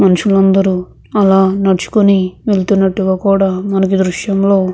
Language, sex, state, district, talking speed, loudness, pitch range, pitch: Telugu, female, Andhra Pradesh, Visakhapatnam, 100 wpm, -13 LUFS, 190-195 Hz, 195 Hz